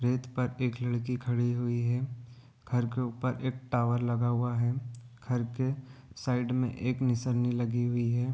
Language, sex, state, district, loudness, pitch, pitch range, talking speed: Hindi, male, Bihar, Gopalganj, -31 LUFS, 120 Hz, 120-125 Hz, 170 wpm